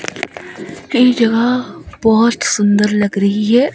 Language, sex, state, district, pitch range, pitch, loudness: Hindi, female, Himachal Pradesh, Shimla, 210-250 Hz, 230 Hz, -14 LUFS